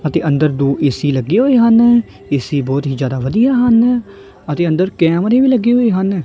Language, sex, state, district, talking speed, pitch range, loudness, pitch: Punjabi, male, Punjab, Kapurthala, 190 wpm, 145-235 Hz, -14 LUFS, 175 Hz